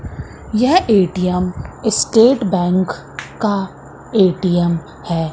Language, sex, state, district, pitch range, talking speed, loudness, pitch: Hindi, female, Madhya Pradesh, Katni, 175-215 Hz, 80 wpm, -16 LUFS, 185 Hz